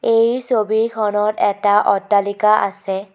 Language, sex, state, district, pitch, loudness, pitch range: Assamese, female, Assam, Kamrup Metropolitan, 210 Hz, -17 LUFS, 200-220 Hz